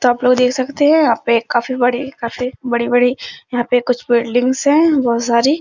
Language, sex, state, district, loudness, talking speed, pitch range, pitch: Hindi, female, Bihar, Araria, -15 LUFS, 205 wpm, 240-260 Hz, 250 Hz